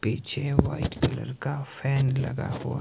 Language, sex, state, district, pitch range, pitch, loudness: Hindi, male, Himachal Pradesh, Shimla, 130-140 Hz, 135 Hz, -27 LUFS